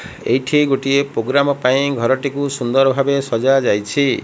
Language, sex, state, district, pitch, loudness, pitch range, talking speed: Odia, female, Odisha, Malkangiri, 135 Hz, -16 LUFS, 130-140 Hz, 125 wpm